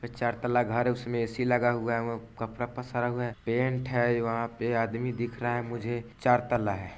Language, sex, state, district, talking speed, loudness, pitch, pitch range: Hindi, male, Bihar, Vaishali, 225 wpm, -29 LUFS, 120 Hz, 115-120 Hz